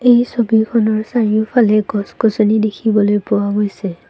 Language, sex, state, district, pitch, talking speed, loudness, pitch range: Assamese, female, Assam, Kamrup Metropolitan, 215 Hz, 105 wpm, -15 LUFS, 210-225 Hz